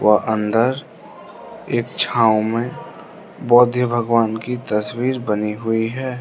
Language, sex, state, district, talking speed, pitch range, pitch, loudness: Hindi, male, Arunachal Pradesh, Lower Dibang Valley, 115 wpm, 110-125 Hz, 115 Hz, -19 LUFS